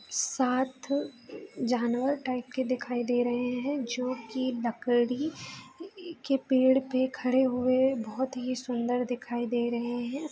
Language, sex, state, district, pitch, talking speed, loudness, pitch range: Hindi, female, Bihar, Gopalganj, 255 Hz, 140 wpm, -29 LUFS, 245-265 Hz